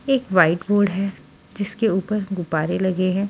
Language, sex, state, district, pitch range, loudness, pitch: Hindi, female, Maharashtra, Washim, 185-205 Hz, -21 LUFS, 195 Hz